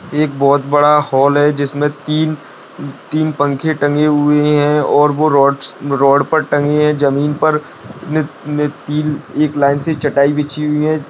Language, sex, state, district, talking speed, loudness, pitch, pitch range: Hindi, male, Bihar, Darbhanga, 155 wpm, -14 LUFS, 150 Hz, 145-150 Hz